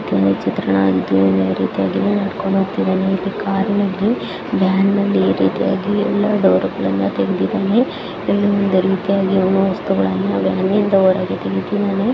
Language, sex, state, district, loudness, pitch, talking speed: Kannada, female, Karnataka, Chamarajanagar, -17 LUFS, 190 Hz, 115 wpm